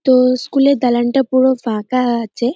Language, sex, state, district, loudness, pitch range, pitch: Bengali, male, West Bengal, North 24 Parganas, -15 LUFS, 240-260 Hz, 255 Hz